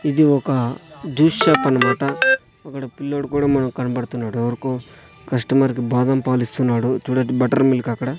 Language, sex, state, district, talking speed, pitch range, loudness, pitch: Telugu, male, Andhra Pradesh, Sri Satya Sai, 140 wpm, 125-145 Hz, -19 LUFS, 130 Hz